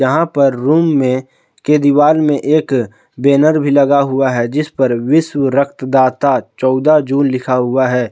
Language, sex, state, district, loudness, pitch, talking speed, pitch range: Hindi, male, Jharkhand, Palamu, -13 LUFS, 140 Hz, 170 wpm, 130-150 Hz